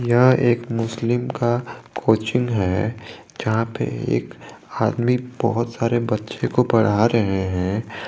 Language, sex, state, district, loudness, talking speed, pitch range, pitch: Hindi, male, Jharkhand, Garhwa, -21 LUFS, 125 wpm, 105-120 Hz, 115 Hz